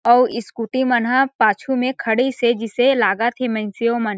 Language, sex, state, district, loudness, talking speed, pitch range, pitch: Chhattisgarhi, female, Chhattisgarh, Sarguja, -18 LUFS, 155 wpm, 225-255 Hz, 240 Hz